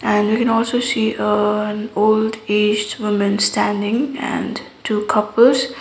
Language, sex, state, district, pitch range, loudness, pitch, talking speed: English, female, Sikkim, Gangtok, 210-240 Hz, -18 LUFS, 215 Hz, 135 wpm